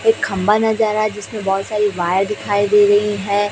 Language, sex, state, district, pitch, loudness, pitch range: Hindi, female, Chhattisgarh, Raipur, 205 Hz, -17 LUFS, 205-215 Hz